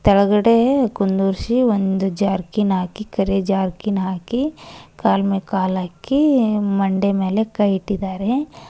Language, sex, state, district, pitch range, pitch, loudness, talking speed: Kannada, female, Karnataka, Koppal, 195-220 Hz, 200 Hz, -19 LUFS, 110 wpm